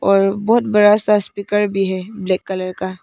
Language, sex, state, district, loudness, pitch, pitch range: Hindi, female, Arunachal Pradesh, Papum Pare, -17 LUFS, 195 Hz, 185-210 Hz